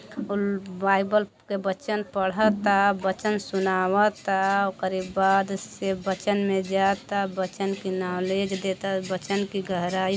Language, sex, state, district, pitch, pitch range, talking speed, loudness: Bhojpuri, female, Uttar Pradesh, Deoria, 195 Hz, 190-200 Hz, 120 wpm, -25 LUFS